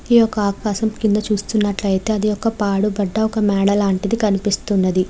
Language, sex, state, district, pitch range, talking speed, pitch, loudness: Telugu, female, Andhra Pradesh, Krishna, 200-215 Hz, 140 wpm, 210 Hz, -18 LUFS